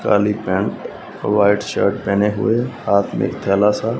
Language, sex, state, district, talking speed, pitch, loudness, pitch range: Hindi, male, Punjab, Fazilka, 150 wpm, 105 Hz, -18 LUFS, 100-110 Hz